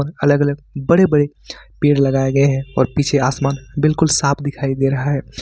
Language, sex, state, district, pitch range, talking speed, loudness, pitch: Hindi, male, Jharkhand, Ranchi, 135-145 Hz, 190 wpm, -17 LUFS, 140 Hz